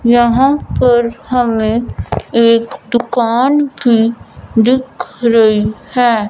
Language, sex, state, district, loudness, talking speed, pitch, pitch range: Hindi, female, Punjab, Fazilka, -13 LUFS, 85 wpm, 235 Hz, 230-250 Hz